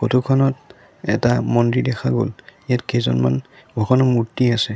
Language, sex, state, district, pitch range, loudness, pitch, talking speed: Assamese, male, Assam, Sonitpur, 115-130 Hz, -19 LUFS, 120 Hz, 140 wpm